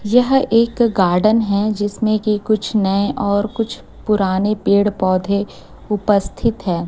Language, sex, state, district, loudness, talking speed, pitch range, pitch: Hindi, female, Chhattisgarh, Raipur, -17 LUFS, 130 wpm, 200-220 Hz, 205 Hz